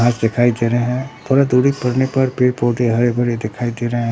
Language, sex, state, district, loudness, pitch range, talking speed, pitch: Hindi, male, Bihar, Katihar, -17 LUFS, 120-125 Hz, 220 wpm, 120 Hz